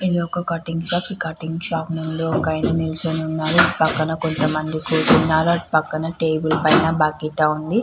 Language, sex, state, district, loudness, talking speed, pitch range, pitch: Telugu, female, Andhra Pradesh, Chittoor, -19 LUFS, 155 wpm, 155-165 Hz, 160 Hz